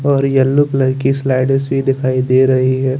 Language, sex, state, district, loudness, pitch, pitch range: Hindi, male, Chandigarh, Chandigarh, -14 LUFS, 135 Hz, 130-135 Hz